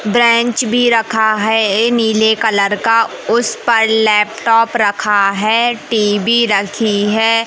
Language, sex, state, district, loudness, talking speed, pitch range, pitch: Hindi, male, Madhya Pradesh, Katni, -13 LUFS, 130 wpm, 210-230 Hz, 220 Hz